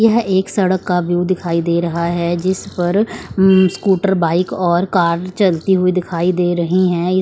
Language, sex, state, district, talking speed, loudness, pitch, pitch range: Hindi, female, Chandigarh, Chandigarh, 185 wpm, -16 LUFS, 180 Hz, 175-190 Hz